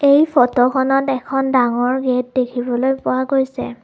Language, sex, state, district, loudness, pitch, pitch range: Assamese, female, Assam, Kamrup Metropolitan, -17 LUFS, 260 Hz, 245-270 Hz